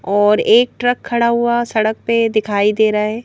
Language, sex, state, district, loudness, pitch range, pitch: Hindi, female, Madhya Pradesh, Bhopal, -15 LUFS, 210-235 Hz, 225 Hz